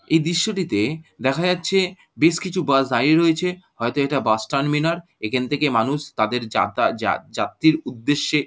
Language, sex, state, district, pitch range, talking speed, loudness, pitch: Bengali, male, West Bengal, Jhargram, 130-170 Hz, 150 wpm, -21 LUFS, 150 Hz